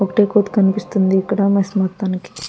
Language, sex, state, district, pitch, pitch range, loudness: Telugu, female, Andhra Pradesh, Guntur, 195 Hz, 190-205 Hz, -17 LUFS